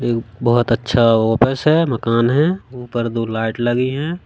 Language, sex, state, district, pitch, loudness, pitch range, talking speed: Hindi, male, Madhya Pradesh, Katni, 120 Hz, -17 LUFS, 115-130 Hz, 170 wpm